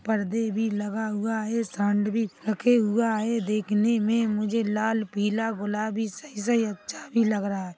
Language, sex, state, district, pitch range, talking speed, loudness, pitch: Hindi, female, Chhattisgarh, Bilaspur, 210-225 Hz, 185 wpm, -26 LUFS, 220 Hz